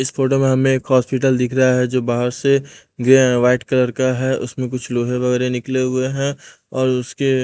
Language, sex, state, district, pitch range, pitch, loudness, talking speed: Hindi, male, Punjab, Pathankot, 125-130 Hz, 130 Hz, -17 LUFS, 210 wpm